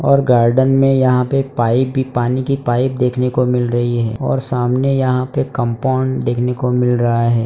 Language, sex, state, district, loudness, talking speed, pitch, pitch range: Hindi, male, Gujarat, Valsad, -16 LUFS, 200 wpm, 125 Hz, 120-130 Hz